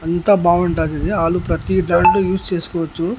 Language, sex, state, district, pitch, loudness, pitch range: Telugu, male, Andhra Pradesh, Annamaya, 175 Hz, -17 LUFS, 165-185 Hz